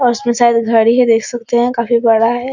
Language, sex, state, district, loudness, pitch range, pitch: Hindi, female, Bihar, Araria, -13 LUFS, 230-240 Hz, 235 Hz